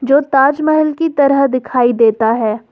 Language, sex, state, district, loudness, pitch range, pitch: Hindi, female, Jharkhand, Ranchi, -13 LUFS, 230-290 Hz, 270 Hz